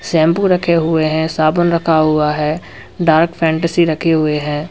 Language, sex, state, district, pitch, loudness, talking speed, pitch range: Hindi, male, Uttar Pradesh, Lalitpur, 160 Hz, -14 LUFS, 165 wpm, 155-170 Hz